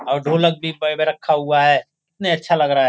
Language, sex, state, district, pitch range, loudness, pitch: Hindi, male, Bihar, Gopalganj, 145-165 Hz, -18 LUFS, 155 Hz